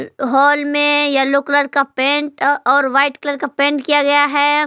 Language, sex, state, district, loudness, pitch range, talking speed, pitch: Hindi, female, Jharkhand, Palamu, -14 LUFS, 280-290 Hz, 180 wpm, 285 Hz